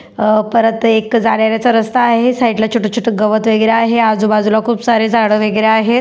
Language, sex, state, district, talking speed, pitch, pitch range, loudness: Marathi, female, Maharashtra, Dhule, 210 wpm, 225 Hz, 220-235 Hz, -12 LUFS